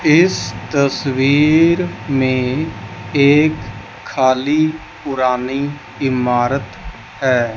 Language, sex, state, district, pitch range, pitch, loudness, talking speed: Hindi, male, Chandigarh, Chandigarh, 125-150 Hz, 135 Hz, -16 LUFS, 65 wpm